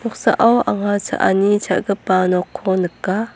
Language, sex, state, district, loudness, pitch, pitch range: Garo, female, Meghalaya, North Garo Hills, -17 LUFS, 200 Hz, 185-205 Hz